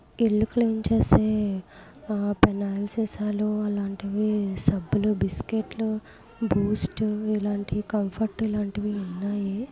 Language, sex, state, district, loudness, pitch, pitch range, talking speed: Telugu, female, Andhra Pradesh, Guntur, -26 LUFS, 210 Hz, 200-215 Hz, 85 wpm